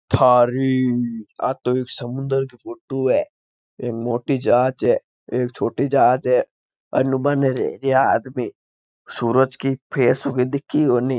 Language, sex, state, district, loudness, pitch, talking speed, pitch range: Marwari, male, Rajasthan, Nagaur, -20 LUFS, 130 Hz, 105 wpm, 120-135 Hz